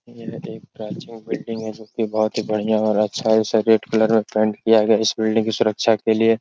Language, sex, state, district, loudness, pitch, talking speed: Hindi, male, Uttar Pradesh, Etah, -19 LUFS, 110 Hz, 245 wpm